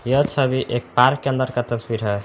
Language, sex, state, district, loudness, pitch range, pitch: Hindi, male, Jharkhand, Palamu, -20 LUFS, 120-135 Hz, 125 Hz